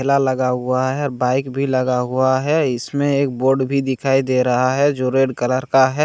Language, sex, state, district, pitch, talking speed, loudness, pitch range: Hindi, male, Bihar, Katihar, 130 Hz, 220 wpm, -18 LUFS, 130-135 Hz